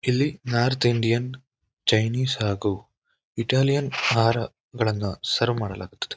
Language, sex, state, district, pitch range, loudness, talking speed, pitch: Kannada, male, Karnataka, Mysore, 110-130 Hz, -24 LUFS, 85 wpm, 115 Hz